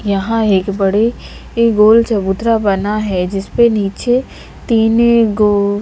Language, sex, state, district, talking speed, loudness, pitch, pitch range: Hindi, female, Bihar, Patna, 125 wpm, -13 LUFS, 210 Hz, 200-230 Hz